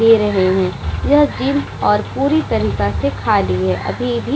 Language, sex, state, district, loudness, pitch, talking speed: Hindi, female, Bihar, Vaishali, -16 LUFS, 120 Hz, 190 wpm